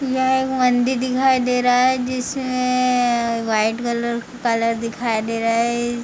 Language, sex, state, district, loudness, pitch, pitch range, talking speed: Hindi, female, Jharkhand, Jamtara, -19 LUFS, 245 Hz, 230-255 Hz, 140 wpm